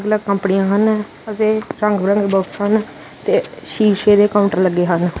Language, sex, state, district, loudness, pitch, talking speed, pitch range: Punjabi, male, Punjab, Kapurthala, -16 LUFS, 205 Hz, 150 wpm, 195-215 Hz